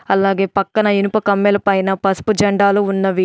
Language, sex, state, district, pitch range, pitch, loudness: Telugu, female, Telangana, Adilabad, 195-205 Hz, 200 Hz, -16 LUFS